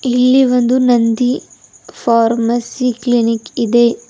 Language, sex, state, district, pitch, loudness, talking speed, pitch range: Kannada, female, Karnataka, Bidar, 240 Hz, -14 LUFS, 90 wpm, 230-250 Hz